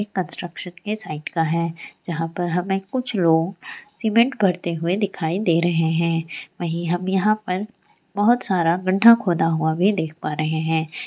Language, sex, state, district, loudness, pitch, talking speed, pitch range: Hindi, female, Bihar, Sitamarhi, -21 LUFS, 175 Hz, 185 wpm, 165-195 Hz